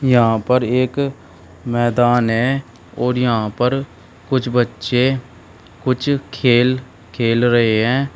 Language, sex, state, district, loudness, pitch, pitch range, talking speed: Hindi, male, Uttar Pradesh, Shamli, -17 LUFS, 120 Hz, 115-130 Hz, 110 wpm